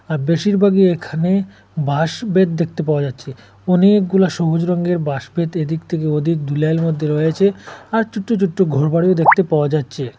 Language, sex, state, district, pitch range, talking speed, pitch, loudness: Bengali, male, Assam, Hailakandi, 150-190 Hz, 155 wpm, 165 Hz, -17 LUFS